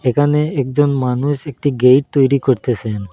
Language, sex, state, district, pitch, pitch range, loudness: Bengali, male, Assam, Hailakandi, 135 Hz, 125-145 Hz, -16 LUFS